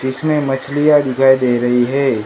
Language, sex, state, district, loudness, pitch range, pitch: Hindi, male, Gujarat, Gandhinagar, -14 LUFS, 125-145 Hz, 135 Hz